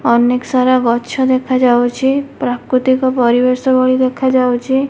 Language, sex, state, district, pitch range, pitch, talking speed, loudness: Odia, female, Odisha, Malkangiri, 245-260 Hz, 255 Hz, 100 wpm, -13 LUFS